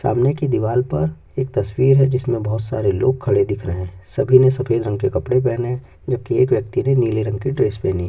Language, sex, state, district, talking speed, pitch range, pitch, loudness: Hindi, male, Chhattisgarh, Bastar, 245 wpm, 100-130 Hz, 120 Hz, -19 LUFS